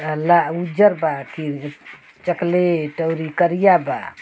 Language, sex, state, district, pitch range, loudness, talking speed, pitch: Bhojpuri, male, Uttar Pradesh, Ghazipur, 155-175 Hz, -19 LUFS, 130 wpm, 165 Hz